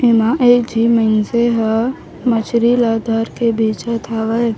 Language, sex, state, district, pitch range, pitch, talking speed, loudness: Chhattisgarhi, female, Chhattisgarh, Raigarh, 225-235 Hz, 230 Hz, 145 wpm, -15 LUFS